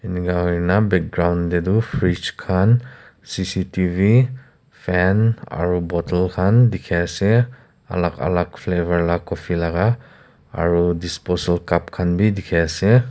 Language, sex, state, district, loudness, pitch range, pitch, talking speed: Nagamese, male, Nagaland, Kohima, -19 LUFS, 85-110 Hz, 90 Hz, 130 wpm